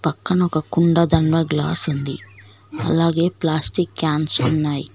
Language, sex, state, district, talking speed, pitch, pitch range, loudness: Telugu, female, Telangana, Mahabubabad, 120 wpm, 160 Hz, 150-170 Hz, -18 LUFS